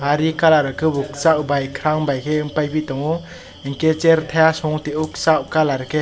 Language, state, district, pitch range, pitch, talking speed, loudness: Kokborok, Tripura, West Tripura, 145-160 Hz, 155 Hz, 200 wpm, -18 LUFS